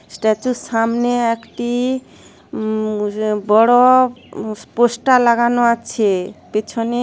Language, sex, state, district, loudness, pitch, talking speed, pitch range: Bengali, female, West Bengal, Jhargram, -17 LUFS, 235 Hz, 75 wpm, 215-245 Hz